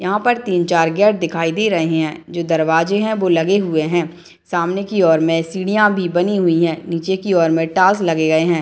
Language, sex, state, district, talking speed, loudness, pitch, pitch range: Hindi, female, Bihar, Madhepura, 230 wpm, -16 LUFS, 175 Hz, 165-190 Hz